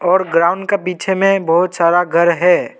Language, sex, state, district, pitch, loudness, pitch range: Hindi, male, Arunachal Pradesh, Lower Dibang Valley, 180 Hz, -14 LUFS, 170-190 Hz